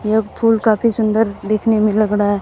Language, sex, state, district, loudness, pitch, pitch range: Hindi, female, Bihar, Katihar, -16 LUFS, 215 Hz, 210-225 Hz